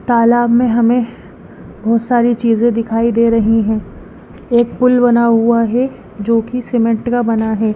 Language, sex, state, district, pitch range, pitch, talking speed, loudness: Hindi, female, Bihar, Katihar, 225-240 Hz, 235 Hz, 155 wpm, -14 LUFS